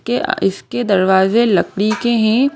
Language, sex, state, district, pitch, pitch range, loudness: Hindi, female, Madhya Pradesh, Bhopal, 215 Hz, 190-235 Hz, -15 LUFS